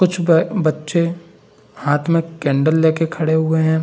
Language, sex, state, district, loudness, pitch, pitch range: Hindi, male, Bihar, Saran, -17 LUFS, 160 Hz, 160-170 Hz